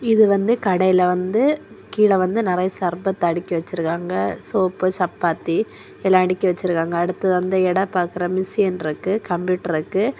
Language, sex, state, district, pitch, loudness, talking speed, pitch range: Tamil, female, Tamil Nadu, Kanyakumari, 185 Hz, -20 LUFS, 135 wpm, 180-195 Hz